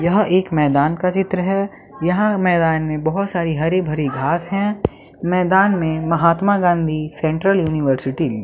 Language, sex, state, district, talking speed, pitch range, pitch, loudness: Hindi, male, Bihar, West Champaran, 155 wpm, 155-190 Hz, 170 Hz, -18 LUFS